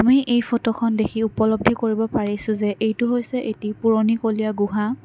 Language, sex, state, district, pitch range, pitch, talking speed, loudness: Assamese, female, Assam, Kamrup Metropolitan, 215-235 Hz, 220 Hz, 155 wpm, -21 LUFS